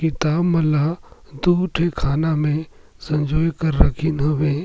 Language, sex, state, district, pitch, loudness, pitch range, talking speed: Surgujia, male, Chhattisgarh, Sarguja, 155 Hz, -20 LUFS, 150-165 Hz, 140 wpm